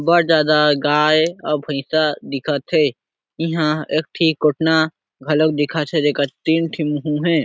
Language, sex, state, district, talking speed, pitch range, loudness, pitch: Chhattisgarhi, male, Chhattisgarh, Sarguja, 145 wpm, 150-160 Hz, -18 LUFS, 155 Hz